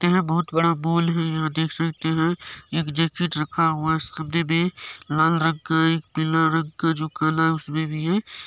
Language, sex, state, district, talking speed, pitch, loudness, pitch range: Maithili, male, Bihar, Supaul, 210 wpm, 160 Hz, -23 LUFS, 160-165 Hz